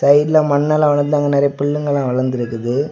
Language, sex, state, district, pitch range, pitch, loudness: Tamil, male, Tamil Nadu, Kanyakumari, 140-150 Hz, 145 Hz, -16 LUFS